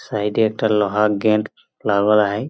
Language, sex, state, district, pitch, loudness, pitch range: Bengali, male, West Bengal, Purulia, 105 Hz, -18 LUFS, 105-110 Hz